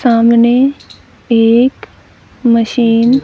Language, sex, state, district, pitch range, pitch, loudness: Hindi, female, Haryana, Jhajjar, 230-255 Hz, 235 Hz, -11 LUFS